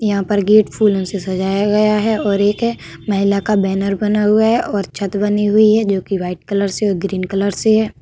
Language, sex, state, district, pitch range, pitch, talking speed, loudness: Hindi, female, Uttar Pradesh, Budaun, 195-210 Hz, 205 Hz, 215 wpm, -16 LUFS